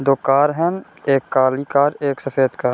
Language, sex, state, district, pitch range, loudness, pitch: Hindi, male, Bihar, Gopalganj, 135-145 Hz, -18 LUFS, 140 Hz